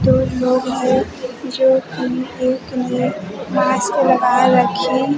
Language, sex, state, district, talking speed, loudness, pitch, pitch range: Hindi, female, Chhattisgarh, Raipur, 95 wpm, -17 LUFS, 255 Hz, 250-260 Hz